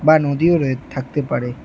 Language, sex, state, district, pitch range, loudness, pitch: Bengali, female, West Bengal, Alipurduar, 130-155 Hz, -18 LUFS, 140 Hz